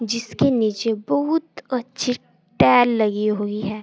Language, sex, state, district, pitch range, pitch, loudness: Hindi, female, Uttar Pradesh, Saharanpur, 215-255 Hz, 230 Hz, -20 LUFS